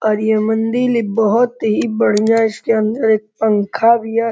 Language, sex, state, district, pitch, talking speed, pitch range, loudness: Hindi, male, Uttar Pradesh, Gorakhpur, 220 Hz, 165 wpm, 215-230 Hz, -15 LUFS